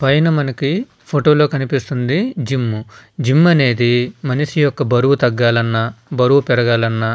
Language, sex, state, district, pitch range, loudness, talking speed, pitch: Telugu, male, Andhra Pradesh, Visakhapatnam, 120-145 Hz, -15 LUFS, 150 wpm, 135 Hz